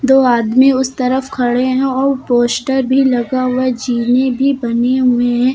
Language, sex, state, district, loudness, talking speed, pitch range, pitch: Hindi, female, Uttar Pradesh, Lucknow, -14 LUFS, 175 wpm, 245-265 Hz, 255 Hz